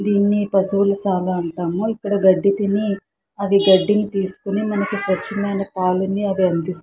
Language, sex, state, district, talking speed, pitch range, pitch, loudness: Telugu, female, Andhra Pradesh, Krishna, 130 wpm, 190-205 Hz, 200 Hz, -19 LUFS